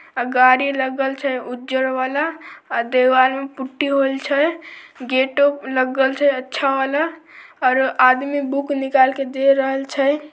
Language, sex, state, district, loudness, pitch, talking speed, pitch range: Maithili, female, Bihar, Samastipur, -18 LUFS, 270 Hz, 145 wpm, 260-285 Hz